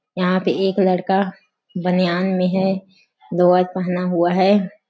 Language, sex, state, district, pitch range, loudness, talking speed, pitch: Hindi, female, Chhattisgarh, Sarguja, 180-190 Hz, -19 LUFS, 135 wpm, 185 Hz